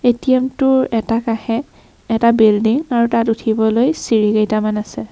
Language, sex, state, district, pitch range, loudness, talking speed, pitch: Assamese, female, Assam, Kamrup Metropolitan, 220-245 Hz, -16 LUFS, 140 wpm, 230 Hz